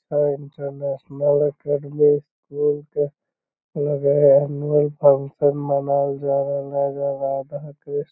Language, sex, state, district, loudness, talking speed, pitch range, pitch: Magahi, male, Bihar, Lakhisarai, -21 LUFS, 120 wpm, 140-145 Hz, 145 Hz